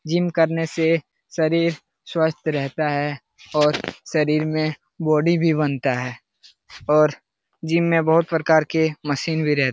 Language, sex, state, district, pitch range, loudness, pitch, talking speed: Hindi, male, Bihar, Lakhisarai, 145-165 Hz, -21 LUFS, 155 Hz, 150 wpm